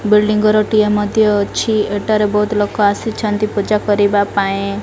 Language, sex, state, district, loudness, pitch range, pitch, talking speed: Odia, female, Odisha, Malkangiri, -15 LUFS, 205-215 Hz, 210 Hz, 135 wpm